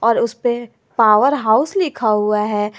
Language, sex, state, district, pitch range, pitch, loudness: Hindi, female, Jharkhand, Garhwa, 210-245 Hz, 225 Hz, -16 LUFS